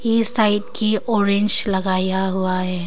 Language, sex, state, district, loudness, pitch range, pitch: Hindi, female, Arunachal Pradesh, Longding, -16 LUFS, 190-215 Hz, 200 Hz